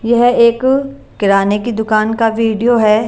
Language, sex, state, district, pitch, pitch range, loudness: Hindi, female, Bihar, Katihar, 225 Hz, 215-240 Hz, -13 LUFS